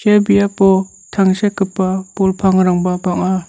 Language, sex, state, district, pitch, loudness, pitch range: Garo, male, Meghalaya, North Garo Hills, 190 Hz, -15 LUFS, 185-200 Hz